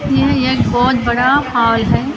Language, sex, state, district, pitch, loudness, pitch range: Hindi, female, Maharashtra, Gondia, 245 Hz, -14 LUFS, 235-260 Hz